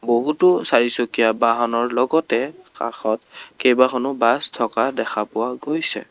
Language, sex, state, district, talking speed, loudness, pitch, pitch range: Assamese, male, Assam, Kamrup Metropolitan, 110 wpm, -19 LUFS, 120 Hz, 115-135 Hz